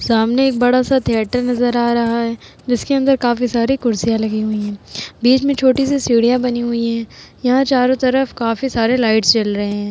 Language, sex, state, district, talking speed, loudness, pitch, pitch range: Hindi, female, Bihar, Vaishali, 205 wpm, -16 LUFS, 240 Hz, 230-255 Hz